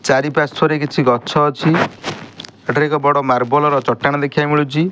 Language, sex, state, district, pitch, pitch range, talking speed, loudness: Odia, male, Odisha, Nuapada, 150 Hz, 140-150 Hz, 145 wpm, -16 LUFS